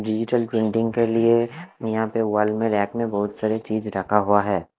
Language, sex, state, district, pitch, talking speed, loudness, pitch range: Hindi, male, Odisha, Khordha, 110 Hz, 200 wpm, -22 LUFS, 105-115 Hz